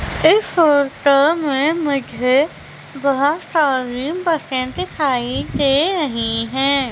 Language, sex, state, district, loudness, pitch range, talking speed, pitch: Hindi, female, Madhya Pradesh, Umaria, -17 LUFS, 265-315 Hz, 95 wpm, 280 Hz